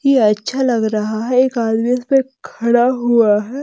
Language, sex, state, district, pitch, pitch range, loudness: Hindi, female, Bihar, Jamui, 240 Hz, 220-260 Hz, -16 LUFS